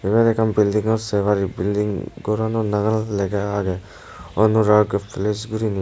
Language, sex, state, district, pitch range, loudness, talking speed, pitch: Chakma, male, Tripura, West Tripura, 100-110 Hz, -20 LUFS, 145 wpm, 105 Hz